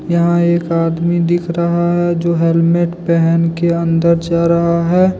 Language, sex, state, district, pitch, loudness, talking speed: Hindi, male, Jharkhand, Deoghar, 170 Hz, -14 LUFS, 160 wpm